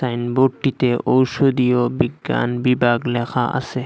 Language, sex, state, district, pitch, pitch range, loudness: Bengali, male, Assam, Hailakandi, 125 Hz, 120-130 Hz, -19 LUFS